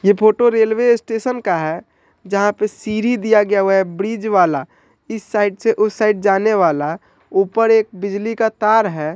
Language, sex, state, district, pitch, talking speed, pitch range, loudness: Hindi, male, Bihar, Sitamarhi, 215 Hz, 185 wpm, 195-225 Hz, -16 LUFS